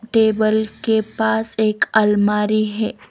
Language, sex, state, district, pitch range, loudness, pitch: Hindi, female, Bihar, West Champaran, 215-220 Hz, -18 LUFS, 220 Hz